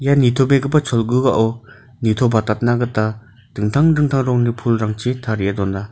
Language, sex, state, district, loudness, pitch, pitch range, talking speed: Garo, male, Meghalaya, North Garo Hills, -17 LUFS, 120 Hz, 110-130 Hz, 100 wpm